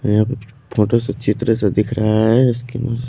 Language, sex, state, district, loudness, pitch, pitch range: Hindi, male, Haryana, Charkhi Dadri, -17 LUFS, 115 Hz, 105-125 Hz